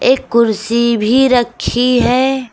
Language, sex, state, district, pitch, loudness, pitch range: Hindi, female, Uttar Pradesh, Lucknow, 245 Hz, -13 LUFS, 235-260 Hz